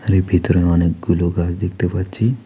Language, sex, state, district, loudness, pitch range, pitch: Bengali, male, West Bengal, Alipurduar, -18 LUFS, 85-95 Hz, 90 Hz